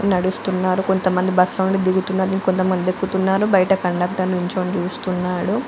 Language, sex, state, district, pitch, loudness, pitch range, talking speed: Telugu, female, Andhra Pradesh, Anantapur, 185 Hz, -19 LUFS, 185-190 Hz, 135 wpm